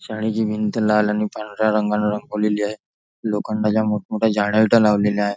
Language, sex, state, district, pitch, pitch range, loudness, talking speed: Marathi, male, Maharashtra, Nagpur, 105 Hz, 105-110 Hz, -20 LUFS, 155 wpm